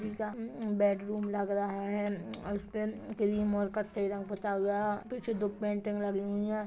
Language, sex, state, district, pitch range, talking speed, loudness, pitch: Hindi, female, Chhattisgarh, Kabirdham, 200-210 Hz, 135 wpm, -34 LUFS, 205 Hz